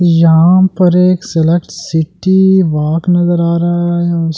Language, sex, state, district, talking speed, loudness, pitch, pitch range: Hindi, male, Delhi, New Delhi, 150 wpm, -11 LUFS, 175 Hz, 165-180 Hz